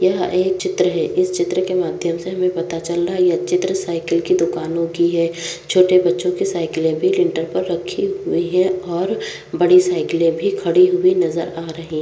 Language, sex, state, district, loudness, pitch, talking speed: Hindi, female, Chhattisgarh, Bastar, -18 LUFS, 180 Hz, 200 wpm